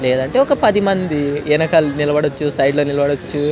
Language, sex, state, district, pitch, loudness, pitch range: Telugu, male, Andhra Pradesh, Anantapur, 150 Hz, -16 LUFS, 145-165 Hz